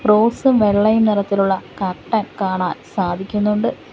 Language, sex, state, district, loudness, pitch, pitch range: Malayalam, female, Kerala, Kollam, -18 LUFS, 205 Hz, 190-215 Hz